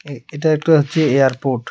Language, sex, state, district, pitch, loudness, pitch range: Bengali, male, West Bengal, Alipurduar, 145 Hz, -16 LUFS, 135-155 Hz